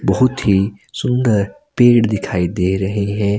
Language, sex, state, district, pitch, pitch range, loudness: Hindi, male, Himachal Pradesh, Shimla, 100 Hz, 95-120 Hz, -16 LUFS